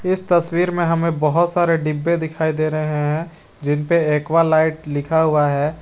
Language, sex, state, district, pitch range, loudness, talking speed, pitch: Hindi, male, Jharkhand, Garhwa, 150-170 Hz, -18 LUFS, 165 wpm, 160 Hz